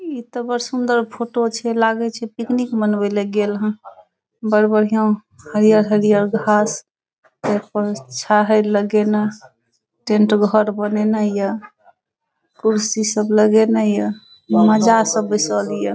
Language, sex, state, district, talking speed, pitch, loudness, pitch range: Maithili, female, Bihar, Saharsa, 130 wpm, 215 Hz, -17 LUFS, 210-225 Hz